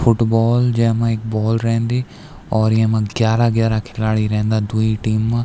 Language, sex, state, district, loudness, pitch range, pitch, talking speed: Garhwali, male, Uttarakhand, Tehri Garhwal, -17 LUFS, 110-115 Hz, 115 Hz, 155 wpm